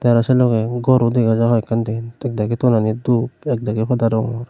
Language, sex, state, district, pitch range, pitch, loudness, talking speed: Chakma, male, Tripura, Unakoti, 115-120 Hz, 115 Hz, -18 LUFS, 185 wpm